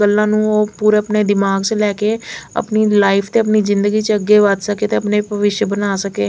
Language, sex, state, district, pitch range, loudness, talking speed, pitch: Hindi, female, Chandigarh, Chandigarh, 205-215 Hz, -15 LUFS, 105 wpm, 210 Hz